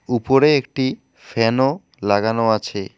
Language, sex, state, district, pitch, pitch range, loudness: Bengali, male, West Bengal, Alipurduar, 120 Hz, 110-135 Hz, -18 LUFS